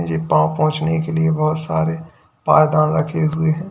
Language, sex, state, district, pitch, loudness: Hindi, male, Uttar Pradesh, Lalitpur, 155 Hz, -17 LUFS